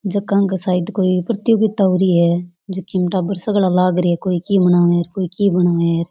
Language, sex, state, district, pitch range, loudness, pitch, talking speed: Rajasthani, female, Rajasthan, Churu, 175-195 Hz, -17 LUFS, 185 Hz, 205 wpm